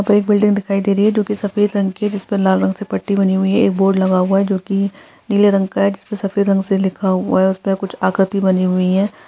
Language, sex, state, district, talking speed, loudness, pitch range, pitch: Hindi, female, Chhattisgarh, Sarguja, 295 wpm, -16 LUFS, 190-205 Hz, 195 Hz